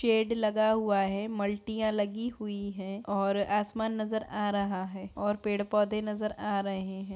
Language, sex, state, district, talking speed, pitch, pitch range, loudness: Hindi, female, Bihar, Araria, 175 wpm, 205 Hz, 200-215 Hz, -31 LUFS